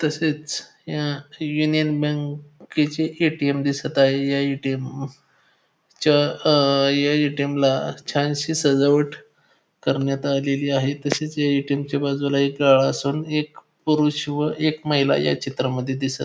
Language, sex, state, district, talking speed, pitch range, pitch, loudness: Marathi, male, Maharashtra, Pune, 130 wpm, 140-150 Hz, 145 Hz, -21 LUFS